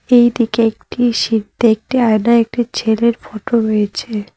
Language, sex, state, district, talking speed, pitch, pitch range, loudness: Bengali, female, West Bengal, Cooch Behar, 135 wpm, 230 Hz, 215-235 Hz, -15 LUFS